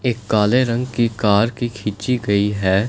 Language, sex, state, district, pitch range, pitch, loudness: Hindi, male, Punjab, Fazilka, 105-120 Hz, 115 Hz, -19 LUFS